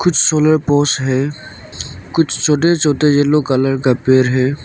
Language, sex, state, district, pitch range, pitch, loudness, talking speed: Hindi, male, Arunachal Pradesh, Lower Dibang Valley, 130-155 Hz, 145 Hz, -14 LUFS, 155 wpm